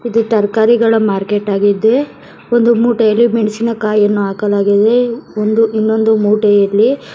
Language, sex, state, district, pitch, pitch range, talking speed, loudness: Kannada, female, Karnataka, Bangalore, 220 Hz, 205-230 Hz, 100 wpm, -13 LUFS